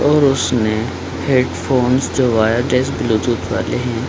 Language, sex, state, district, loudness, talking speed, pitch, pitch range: Hindi, male, Bihar, Supaul, -16 LUFS, 130 wpm, 120 Hz, 110-130 Hz